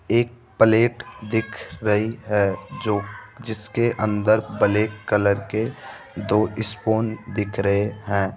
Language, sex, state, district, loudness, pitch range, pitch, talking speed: Hindi, male, Rajasthan, Jaipur, -22 LUFS, 105-110 Hz, 110 Hz, 115 wpm